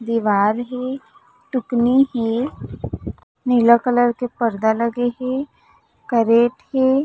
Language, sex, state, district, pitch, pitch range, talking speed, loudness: Chhattisgarhi, female, Chhattisgarh, Raigarh, 245 Hz, 235-255 Hz, 100 wpm, -19 LUFS